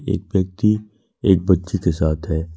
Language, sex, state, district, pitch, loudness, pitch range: Hindi, male, Jharkhand, Ranchi, 95 Hz, -20 LUFS, 85-105 Hz